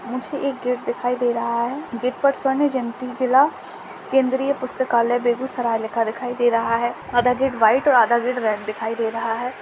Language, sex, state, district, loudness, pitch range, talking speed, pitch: Hindi, female, Bihar, Begusarai, -21 LUFS, 235-260 Hz, 195 wpm, 245 Hz